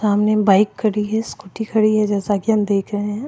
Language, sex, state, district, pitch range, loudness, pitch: Hindi, female, Goa, North and South Goa, 205-215 Hz, -18 LUFS, 210 Hz